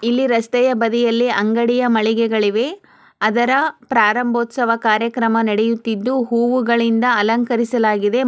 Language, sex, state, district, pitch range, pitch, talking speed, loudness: Kannada, female, Karnataka, Chamarajanagar, 225-245 Hz, 235 Hz, 95 wpm, -17 LUFS